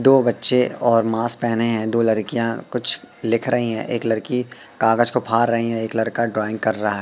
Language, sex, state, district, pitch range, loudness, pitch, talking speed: Hindi, male, Madhya Pradesh, Katni, 110-120 Hz, -19 LUFS, 115 Hz, 205 wpm